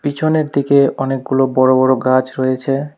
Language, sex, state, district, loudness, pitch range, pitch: Bengali, male, West Bengal, Alipurduar, -15 LUFS, 130-140 Hz, 135 Hz